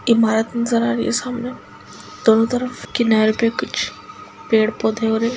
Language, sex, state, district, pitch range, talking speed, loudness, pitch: Hindi, female, Chhattisgarh, Kabirdham, 220-245 Hz, 170 wpm, -19 LUFS, 230 Hz